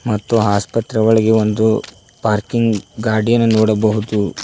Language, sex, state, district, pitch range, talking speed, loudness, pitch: Kannada, male, Karnataka, Koppal, 105-115 Hz, 95 wpm, -16 LUFS, 110 Hz